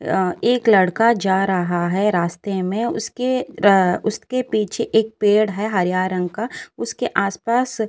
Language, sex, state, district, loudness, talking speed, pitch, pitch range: Hindi, female, Uttar Pradesh, Jyotiba Phule Nagar, -19 LUFS, 165 wpm, 205 Hz, 185-230 Hz